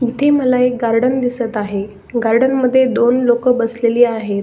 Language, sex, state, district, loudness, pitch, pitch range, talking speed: Marathi, male, Maharashtra, Solapur, -15 LUFS, 240 Hz, 230-255 Hz, 160 wpm